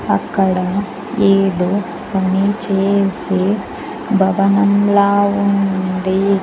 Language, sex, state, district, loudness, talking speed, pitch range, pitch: Telugu, female, Andhra Pradesh, Sri Satya Sai, -15 LUFS, 55 wpm, 190-200 Hz, 195 Hz